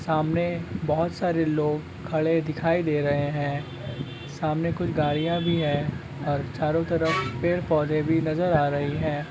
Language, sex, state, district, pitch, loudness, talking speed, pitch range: Magahi, male, Bihar, Gaya, 155 Hz, -25 LUFS, 155 wpm, 145-165 Hz